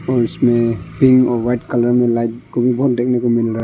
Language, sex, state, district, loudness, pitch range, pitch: Hindi, male, Arunachal Pradesh, Longding, -16 LUFS, 115-125 Hz, 120 Hz